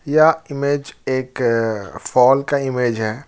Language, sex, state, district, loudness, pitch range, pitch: Hindi, male, Jharkhand, Ranchi, -18 LUFS, 115-140 Hz, 130 Hz